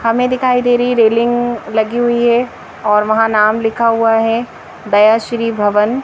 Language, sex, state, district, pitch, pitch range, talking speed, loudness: Hindi, female, Madhya Pradesh, Bhopal, 230 Hz, 220-240 Hz, 170 wpm, -13 LUFS